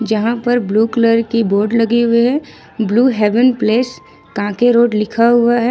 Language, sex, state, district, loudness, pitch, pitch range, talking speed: Hindi, female, Jharkhand, Ranchi, -14 LUFS, 230 Hz, 220-240 Hz, 180 wpm